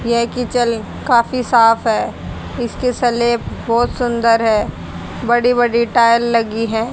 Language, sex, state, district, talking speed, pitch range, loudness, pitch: Hindi, female, Haryana, Charkhi Dadri, 130 wpm, 230-245 Hz, -16 LUFS, 235 Hz